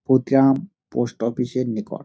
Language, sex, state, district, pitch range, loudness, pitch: Bengali, male, West Bengal, Dakshin Dinajpur, 115-135 Hz, -21 LUFS, 125 Hz